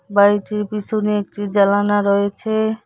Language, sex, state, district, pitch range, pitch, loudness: Bengali, female, West Bengal, Cooch Behar, 200-210 Hz, 205 Hz, -18 LUFS